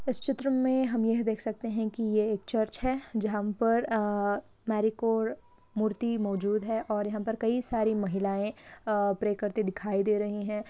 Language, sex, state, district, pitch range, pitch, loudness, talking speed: Hindi, female, Chhattisgarh, Sukma, 210-230 Hz, 215 Hz, -30 LUFS, 190 wpm